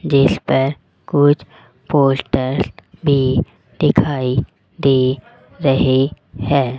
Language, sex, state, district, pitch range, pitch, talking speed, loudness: Hindi, female, Rajasthan, Jaipur, 130-145 Hz, 135 Hz, 70 wpm, -17 LUFS